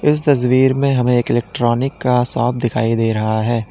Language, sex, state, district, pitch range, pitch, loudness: Hindi, male, Uttar Pradesh, Lalitpur, 120-130 Hz, 125 Hz, -16 LUFS